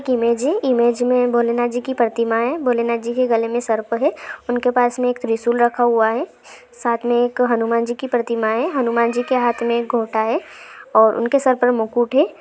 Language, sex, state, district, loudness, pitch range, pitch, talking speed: Hindi, female, Jharkhand, Sahebganj, -18 LUFS, 235-245 Hz, 240 Hz, 220 wpm